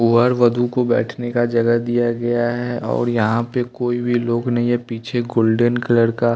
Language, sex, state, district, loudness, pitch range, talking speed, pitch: Hindi, male, Bihar, West Champaran, -18 LUFS, 115-120 Hz, 200 wpm, 120 Hz